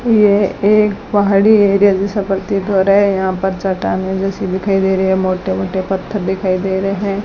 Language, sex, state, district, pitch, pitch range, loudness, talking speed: Hindi, female, Rajasthan, Bikaner, 195 Hz, 190-205 Hz, -14 LUFS, 200 wpm